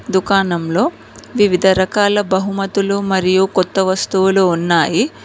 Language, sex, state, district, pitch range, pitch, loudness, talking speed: Telugu, female, Telangana, Mahabubabad, 185-195 Hz, 190 Hz, -15 LUFS, 90 wpm